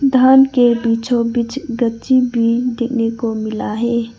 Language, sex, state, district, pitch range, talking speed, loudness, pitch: Hindi, female, Arunachal Pradesh, Lower Dibang Valley, 230-250 Hz, 145 wpm, -16 LUFS, 235 Hz